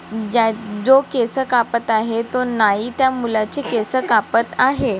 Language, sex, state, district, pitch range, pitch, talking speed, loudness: Marathi, female, Maharashtra, Nagpur, 220-255 Hz, 235 Hz, 145 wpm, -18 LUFS